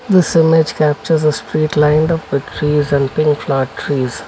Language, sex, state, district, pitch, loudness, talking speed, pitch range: English, male, Karnataka, Bangalore, 150 Hz, -15 LUFS, 180 wpm, 140-160 Hz